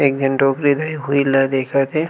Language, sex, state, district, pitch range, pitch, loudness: Chhattisgarhi, male, Chhattisgarh, Rajnandgaon, 135-145 Hz, 140 Hz, -17 LUFS